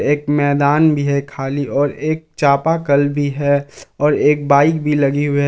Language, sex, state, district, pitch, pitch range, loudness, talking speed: Hindi, male, Jharkhand, Palamu, 145 Hz, 140-150 Hz, -16 LUFS, 185 wpm